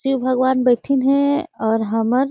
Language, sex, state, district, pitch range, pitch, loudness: Surgujia, female, Chhattisgarh, Sarguja, 240-275 Hz, 260 Hz, -18 LUFS